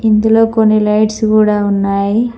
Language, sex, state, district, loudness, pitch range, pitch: Telugu, female, Telangana, Mahabubabad, -12 LUFS, 210-220 Hz, 215 Hz